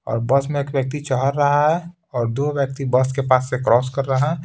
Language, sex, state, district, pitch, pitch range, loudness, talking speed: Hindi, male, Bihar, Patna, 135 Hz, 130-145 Hz, -20 LUFS, 255 wpm